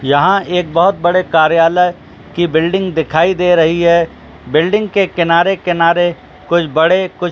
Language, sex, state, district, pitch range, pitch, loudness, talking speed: Hindi, male, Jharkhand, Jamtara, 160-180 Hz, 175 Hz, -13 LUFS, 140 wpm